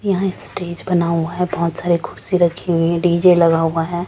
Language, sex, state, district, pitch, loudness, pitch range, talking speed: Hindi, female, Maharashtra, Gondia, 175 Hz, -17 LUFS, 170-180 Hz, 205 wpm